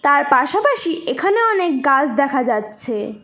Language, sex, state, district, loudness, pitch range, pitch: Bengali, female, West Bengal, Cooch Behar, -17 LUFS, 250-340 Hz, 280 Hz